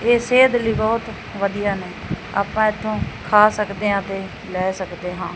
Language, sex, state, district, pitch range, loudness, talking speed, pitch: Punjabi, male, Punjab, Fazilka, 195-220 Hz, -20 LUFS, 170 wpm, 210 Hz